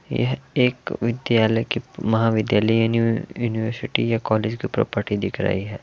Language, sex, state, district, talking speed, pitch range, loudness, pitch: Hindi, male, Uttar Pradesh, Varanasi, 145 wpm, 110-115 Hz, -22 LUFS, 115 Hz